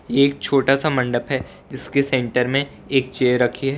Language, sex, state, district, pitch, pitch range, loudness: Hindi, male, Gujarat, Valsad, 135 Hz, 125-140 Hz, -20 LUFS